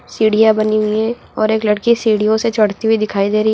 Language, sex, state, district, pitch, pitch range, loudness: Hindi, female, Uttar Pradesh, Lucknow, 215 Hz, 215-220 Hz, -15 LUFS